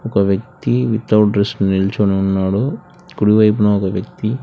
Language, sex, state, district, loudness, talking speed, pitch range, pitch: Telugu, male, Telangana, Hyderabad, -16 LUFS, 135 wpm, 100-115 Hz, 105 Hz